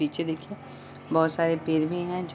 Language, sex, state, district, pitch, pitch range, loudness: Hindi, female, Bihar, Sitamarhi, 165 Hz, 160-175 Hz, -27 LUFS